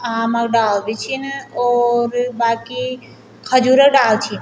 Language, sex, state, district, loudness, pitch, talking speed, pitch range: Garhwali, female, Uttarakhand, Tehri Garhwal, -16 LUFS, 240 Hz, 135 wpm, 230-255 Hz